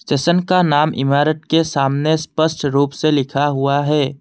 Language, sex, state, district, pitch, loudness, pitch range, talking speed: Hindi, male, Assam, Kamrup Metropolitan, 150 Hz, -16 LUFS, 140-160 Hz, 170 wpm